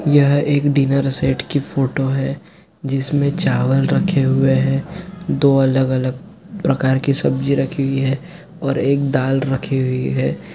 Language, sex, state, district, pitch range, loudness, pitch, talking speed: Hindi, male, Jharkhand, Sahebganj, 135-145 Hz, -17 LUFS, 135 Hz, 155 wpm